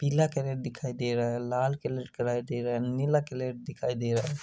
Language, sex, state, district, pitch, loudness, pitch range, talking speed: Hindi, male, Rajasthan, Nagaur, 125 Hz, -31 LUFS, 120-140 Hz, 245 wpm